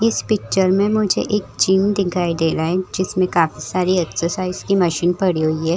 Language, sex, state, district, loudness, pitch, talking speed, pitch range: Hindi, female, Bihar, Madhepura, -18 LUFS, 185 Hz, 210 wpm, 170-195 Hz